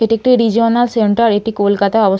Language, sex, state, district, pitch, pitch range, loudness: Bengali, female, West Bengal, North 24 Parganas, 225 Hz, 205-230 Hz, -13 LUFS